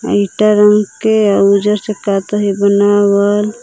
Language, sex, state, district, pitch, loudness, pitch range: Magahi, female, Jharkhand, Palamu, 205 Hz, -12 LUFS, 200-210 Hz